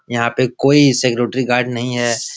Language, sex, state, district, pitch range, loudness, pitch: Hindi, male, Bihar, Supaul, 120-130 Hz, -15 LUFS, 125 Hz